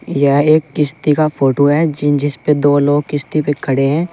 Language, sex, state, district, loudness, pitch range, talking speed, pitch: Hindi, male, Uttar Pradesh, Saharanpur, -14 LUFS, 145-150 Hz, 220 wpm, 145 Hz